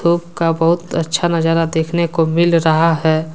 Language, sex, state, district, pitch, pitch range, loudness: Hindi, male, Jharkhand, Deoghar, 165 Hz, 160-170 Hz, -15 LUFS